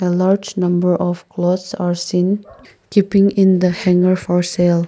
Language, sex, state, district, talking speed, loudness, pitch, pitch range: English, male, Nagaland, Kohima, 160 wpm, -16 LUFS, 180 Hz, 175-190 Hz